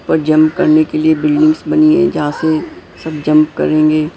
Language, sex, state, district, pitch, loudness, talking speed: Hindi, male, Maharashtra, Mumbai Suburban, 160 Hz, -12 LUFS, 185 wpm